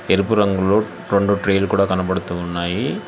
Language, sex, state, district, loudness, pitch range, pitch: Telugu, male, Telangana, Hyderabad, -19 LUFS, 90-100 Hz, 95 Hz